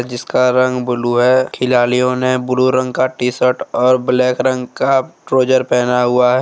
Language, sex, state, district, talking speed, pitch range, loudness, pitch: Hindi, male, Jharkhand, Deoghar, 170 wpm, 125-130 Hz, -15 LUFS, 125 Hz